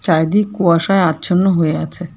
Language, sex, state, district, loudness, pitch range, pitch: Bengali, female, West Bengal, Alipurduar, -15 LUFS, 160-190 Hz, 175 Hz